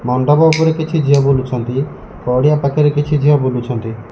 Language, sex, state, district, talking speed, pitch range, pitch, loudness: Odia, male, Odisha, Malkangiri, 145 wpm, 125-150 Hz, 140 Hz, -14 LUFS